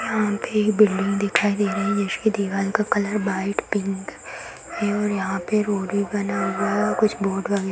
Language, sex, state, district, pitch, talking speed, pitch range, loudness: Hindi, female, Bihar, Darbhanga, 205 Hz, 210 wpm, 195-210 Hz, -22 LUFS